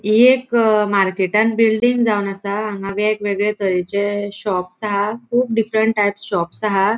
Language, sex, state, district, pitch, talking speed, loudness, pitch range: Konkani, female, Goa, North and South Goa, 210 Hz, 145 wpm, -18 LUFS, 200-220 Hz